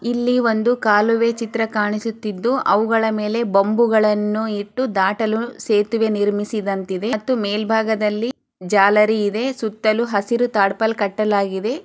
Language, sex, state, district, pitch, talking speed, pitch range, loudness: Kannada, female, Karnataka, Chamarajanagar, 220 Hz, 95 wpm, 205-230 Hz, -19 LUFS